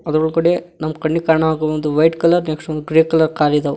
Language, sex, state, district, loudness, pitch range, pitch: Kannada, male, Karnataka, Koppal, -16 LUFS, 155-165 Hz, 160 Hz